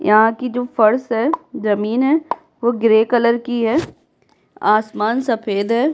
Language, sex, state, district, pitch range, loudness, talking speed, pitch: Hindi, female, Bihar, Kishanganj, 220-245 Hz, -17 LUFS, 150 wpm, 235 Hz